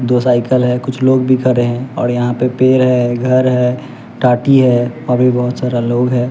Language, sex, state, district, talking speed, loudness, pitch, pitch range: Hindi, male, Bihar, West Champaran, 220 wpm, -13 LUFS, 125 Hz, 120-130 Hz